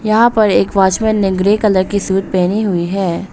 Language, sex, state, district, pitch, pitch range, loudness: Hindi, female, Arunachal Pradesh, Papum Pare, 195 Hz, 190-215 Hz, -14 LUFS